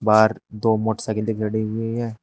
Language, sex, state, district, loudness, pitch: Hindi, male, Uttar Pradesh, Shamli, -22 LUFS, 110 Hz